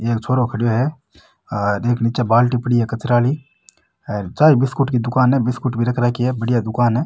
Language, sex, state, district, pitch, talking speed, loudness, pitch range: Rajasthani, male, Rajasthan, Nagaur, 120 Hz, 215 wpm, -18 LUFS, 115-130 Hz